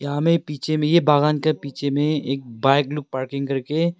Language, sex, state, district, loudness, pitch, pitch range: Hindi, male, Arunachal Pradesh, Lower Dibang Valley, -21 LUFS, 145 Hz, 140-155 Hz